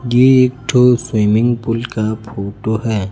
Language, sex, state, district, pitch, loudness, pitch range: Hindi, male, Chhattisgarh, Raipur, 115 Hz, -15 LUFS, 110-125 Hz